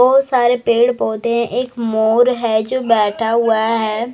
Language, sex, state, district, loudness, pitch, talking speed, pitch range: Hindi, female, Bihar, Kaimur, -15 LUFS, 235 Hz, 160 wpm, 225-245 Hz